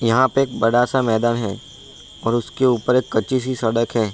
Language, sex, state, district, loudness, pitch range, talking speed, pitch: Hindi, male, Bihar, Bhagalpur, -19 LUFS, 115-130 Hz, 220 wpm, 120 Hz